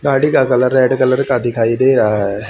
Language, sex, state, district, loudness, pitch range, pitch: Hindi, male, Haryana, Rohtak, -13 LUFS, 115-130 Hz, 130 Hz